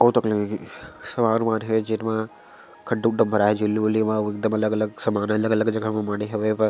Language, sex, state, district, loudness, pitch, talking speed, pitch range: Chhattisgarhi, male, Chhattisgarh, Sarguja, -23 LUFS, 110 Hz, 205 wpm, 105-110 Hz